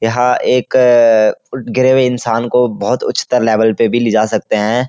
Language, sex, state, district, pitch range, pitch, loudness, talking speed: Hindi, male, Uttarakhand, Uttarkashi, 110-125 Hz, 120 Hz, -13 LUFS, 185 wpm